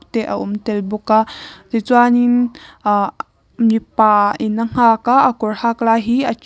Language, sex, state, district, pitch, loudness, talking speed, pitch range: Mizo, female, Mizoram, Aizawl, 225 Hz, -16 LUFS, 185 wpm, 215-240 Hz